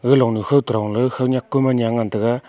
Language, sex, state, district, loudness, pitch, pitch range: Wancho, male, Arunachal Pradesh, Longding, -19 LUFS, 125 Hz, 115-130 Hz